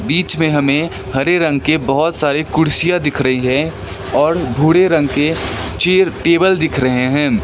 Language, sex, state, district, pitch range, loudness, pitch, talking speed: Hindi, male, West Bengal, Darjeeling, 135-170 Hz, -14 LUFS, 155 Hz, 170 wpm